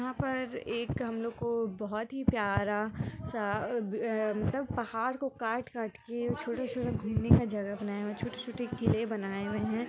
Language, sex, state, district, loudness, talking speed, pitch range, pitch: Hindi, female, Andhra Pradesh, Chittoor, -33 LUFS, 150 wpm, 210-240 Hz, 225 Hz